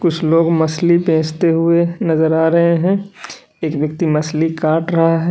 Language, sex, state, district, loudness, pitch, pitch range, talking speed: Hindi, male, Uttar Pradesh, Lalitpur, -15 LUFS, 165 Hz, 160-170 Hz, 170 wpm